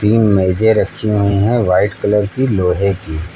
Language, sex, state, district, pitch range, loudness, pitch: Hindi, male, Uttar Pradesh, Lucknow, 95-110 Hz, -14 LUFS, 100 Hz